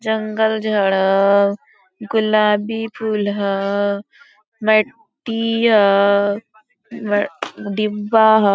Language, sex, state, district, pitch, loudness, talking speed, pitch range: Hindi, female, Jharkhand, Sahebganj, 215 Hz, -17 LUFS, 75 wpm, 200-220 Hz